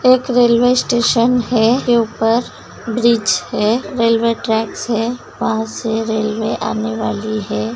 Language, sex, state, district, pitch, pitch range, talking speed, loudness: Hindi, female, Bihar, Begusarai, 230 Hz, 220-240 Hz, 130 wpm, -16 LUFS